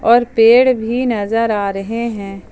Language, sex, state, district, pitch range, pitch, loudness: Hindi, female, Jharkhand, Ranchi, 205-235 Hz, 230 Hz, -14 LUFS